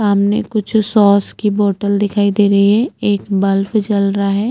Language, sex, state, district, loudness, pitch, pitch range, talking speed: Hindi, female, Chhattisgarh, Bastar, -14 LUFS, 205 Hz, 200-215 Hz, 185 wpm